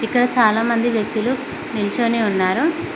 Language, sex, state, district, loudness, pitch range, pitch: Telugu, female, Telangana, Mahabubabad, -19 LUFS, 220-255 Hz, 235 Hz